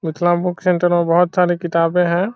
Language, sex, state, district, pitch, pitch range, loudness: Hindi, male, Bihar, Saran, 175 Hz, 170-180 Hz, -16 LUFS